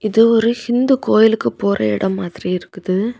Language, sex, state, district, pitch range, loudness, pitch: Tamil, female, Tamil Nadu, Kanyakumari, 190-230 Hz, -16 LUFS, 215 Hz